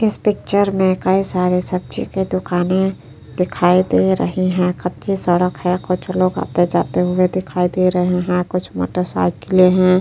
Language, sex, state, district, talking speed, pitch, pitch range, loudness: Hindi, female, Uttar Pradesh, Etah, 160 wpm, 180 Hz, 175-185 Hz, -17 LUFS